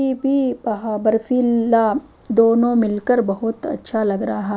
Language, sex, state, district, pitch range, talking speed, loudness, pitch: Hindi, female, Himachal Pradesh, Shimla, 220-255 Hz, 80 wpm, -18 LUFS, 230 Hz